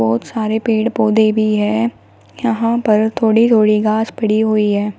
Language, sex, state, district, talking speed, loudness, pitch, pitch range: Hindi, female, Uttar Pradesh, Shamli, 170 wpm, -15 LUFS, 215 Hz, 205-220 Hz